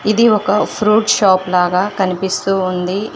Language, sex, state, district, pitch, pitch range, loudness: Telugu, female, Telangana, Mahabubabad, 195 Hz, 185-210 Hz, -14 LUFS